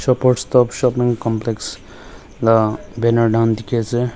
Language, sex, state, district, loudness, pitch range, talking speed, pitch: Nagamese, male, Nagaland, Dimapur, -17 LUFS, 115-125 Hz, 130 wpm, 115 Hz